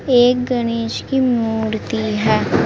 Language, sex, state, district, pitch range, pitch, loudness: Hindi, female, Uttar Pradesh, Saharanpur, 220-245 Hz, 230 Hz, -18 LUFS